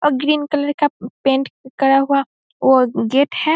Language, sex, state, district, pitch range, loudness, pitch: Hindi, female, Bihar, Saharsa, 265-290 Hz, -17 LUFS, 275 Hz